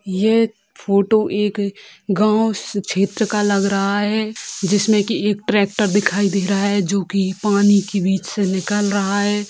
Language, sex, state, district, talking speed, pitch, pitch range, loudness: Hindi, female, Bihar, Sitamarhi, 160 wpm, 205 Hz, 195-210 Hz, -18 LUFS